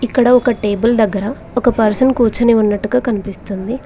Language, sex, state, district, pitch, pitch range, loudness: Telugu, female, Telangana, Mahabubabad, 230 Hz, 210-245 Hz, -14 LUFS